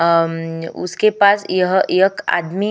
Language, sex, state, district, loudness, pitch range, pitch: Hindi, female, Chhattisgarh, Sukma, -17 LUFS, 165-200 Hz, 185 Hz